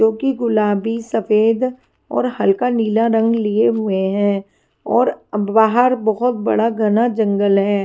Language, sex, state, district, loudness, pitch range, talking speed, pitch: Hindi, female, Himachal Pradesh, Shimla, -17 LUFS, 205-230 Hz, 135 wpm, 220 Hz